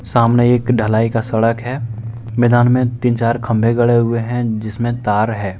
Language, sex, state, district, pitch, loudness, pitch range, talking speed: Hindi, male, Jharkhand, Deoghar, 115 Hz, -16 LUFS, 115-120 Hz, 180 wpm